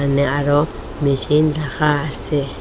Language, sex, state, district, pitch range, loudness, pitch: Bengali, female, Assam, Hailakandi, 140-150 Hz, -18 LUFS, 145 Hz